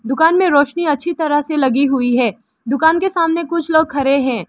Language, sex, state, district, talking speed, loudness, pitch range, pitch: Hindi, female, Arunachal Pradesh, Lower Dibang Valley, 215 wpm, -15 LUFS, 265-325 Hz, 295 Hz